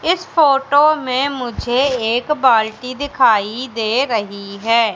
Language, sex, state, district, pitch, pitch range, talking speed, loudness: Hindi, female, Madhya Pradesh, Katni, 255 Hz, 225-280 Hz, 120 wpm, -16 LUFS